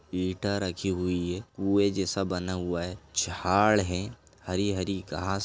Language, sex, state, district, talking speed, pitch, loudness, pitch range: Hindi, male, Chhattisgarh, Balrampur, 155 wpm, 95 Hz, -29 LUFS, 90-100 Hz